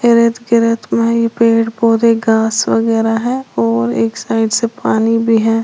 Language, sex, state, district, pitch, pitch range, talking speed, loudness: Hindi, female, Uttar Pradesh, Lalitpur, 230 Hz, 225-230 Hz, 170 wpm, -14 LUFS